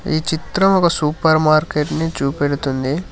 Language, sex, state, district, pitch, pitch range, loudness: Telugu, male, Telangana, Hyderabad, 155 Hz, 145-165 Hz, -17 LUFS